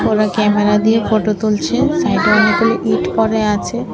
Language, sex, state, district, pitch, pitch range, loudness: Bengali, female, Tripura, West Tripura, 215 Hz, 210-220 Hz, -14 LUFS